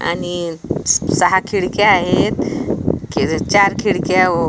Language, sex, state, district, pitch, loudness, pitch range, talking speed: Marathi, female, Maharashtra, Washim, 180 Hz, -16 LUFS, 170-190 Hz, 105 wpm